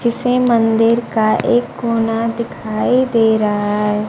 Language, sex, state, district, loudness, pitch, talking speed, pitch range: Hindi, female, Bihar, Kaimur, -15 LUFS, 230 Hz, 130 wpm, 215-235 Hz